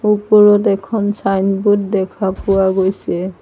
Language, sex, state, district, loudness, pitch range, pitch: Assamese, female, Assam, Sonitpur, -15 LUFS, 190-205 Hz, 195 Hz